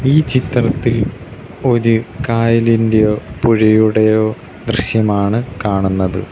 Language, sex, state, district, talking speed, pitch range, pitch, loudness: Malayalam, male, Kerala, Kollam, 65 wpm, 110-120 Hz, 115 Hz, -14 LUFS